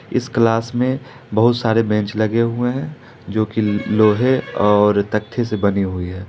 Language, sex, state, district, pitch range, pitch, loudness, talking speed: Hindi, male, Jharkhand, Ranchi, 105-120 Hz, 110 Hz, -18 LUFS, 170 wpm